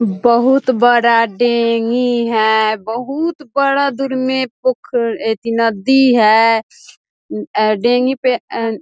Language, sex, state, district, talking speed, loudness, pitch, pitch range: Hindi, female, Bihar, East Champaran, 115 wpm, -14 LUFS, 240 Hz, 225-260 Hz